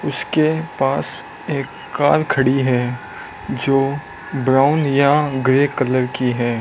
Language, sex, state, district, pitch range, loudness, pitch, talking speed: Hindi, male, Rajasthan, Bikaner, 130-145 Hz, -18 LUFS, 135 Hz, 120 wpm